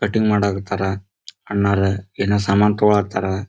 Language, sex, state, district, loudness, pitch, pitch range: Kannada, male, Karnataka, Dharwad, -19 LUFS, 100 Hz, 95-105 Hz